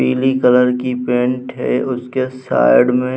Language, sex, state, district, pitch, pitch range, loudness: Hindi, male, Bihar, Vaishali, 125 Hz, 125-130 Hz, -16 LUFS